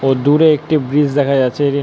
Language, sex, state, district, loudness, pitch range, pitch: Bengali, male, West Bengal, North 24 Parganas, -14 LUFS, 135-150 Hz, 140 Hz